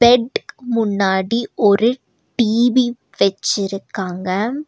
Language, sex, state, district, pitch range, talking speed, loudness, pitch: Tamil, female, Tamil Nadu, Nilgiris, 195-240 Hz, 65 wpm, -18 LUFS, 225 Hz